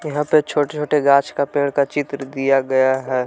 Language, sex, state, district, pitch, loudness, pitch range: Hindi, male, Jharkhand, Palamu, 140 Hz, -18 LUFS, 135-150 Hz